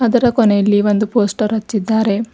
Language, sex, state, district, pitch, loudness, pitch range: Kannada, female, Karnataka, Bidar, 215 Hz, -15 LUFS, 205-230 Hz